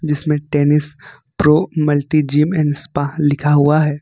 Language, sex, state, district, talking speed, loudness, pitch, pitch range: Hindi, male, Jharkhand, Ranchi, 150 wpm, -15 LUFS, 150 Hz, 145-155 Hz